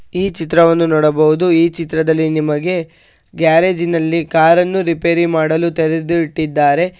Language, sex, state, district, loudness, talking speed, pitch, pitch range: Kannada, male, Karnataka, Shimoga, -14 LUFS, 120 wpm, 165 Hz, 160-170 Hz